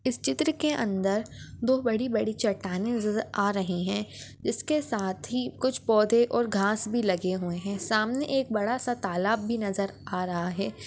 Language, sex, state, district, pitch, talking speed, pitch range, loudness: Hindi, female, Maharashtra, Dhule, 215 Hz, 190 wpm, 195-240 Hz, -28 LUFS